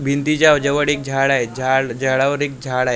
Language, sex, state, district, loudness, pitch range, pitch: Marathi, male, Maharashtra, Gondia, -17 LUFS, 130-145 Hz, 135 Hz